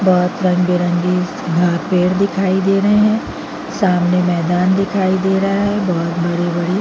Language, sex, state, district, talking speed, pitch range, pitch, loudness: Hindi, female, Chhattisgarh, Bilaspur, 160 wpm, 175-195 Hz, 180 Hz, -16 LUFS